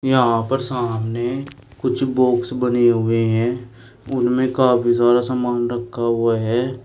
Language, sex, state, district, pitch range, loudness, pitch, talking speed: Hindi, male, Uttar Pradesh, Shamli, 120-125 Hz, -19 LUFS, 120 Hz, 130 wpm